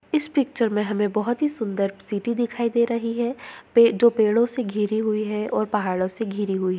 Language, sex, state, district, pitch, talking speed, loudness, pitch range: Hindi, female, Bihar, Begusarai, 220 Hz, 210 wpm, -23 LUFS, 210-235 Hz